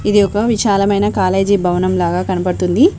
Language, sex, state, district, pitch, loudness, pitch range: Telugu, female, Telangana, Mahabubabad, 195 Hz, -15 LUFS, 180-205 Hz